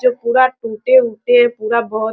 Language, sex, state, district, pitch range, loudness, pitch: Hindi, female, Bihar, Sitamarhi, 225-255 Hz, -14 LUFS, 240 Hz